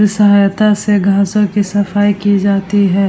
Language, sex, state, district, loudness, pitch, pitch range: Hindi, female, Bihar, Vaishali, -12 LUFS, 205 Hz, 200-205 Hz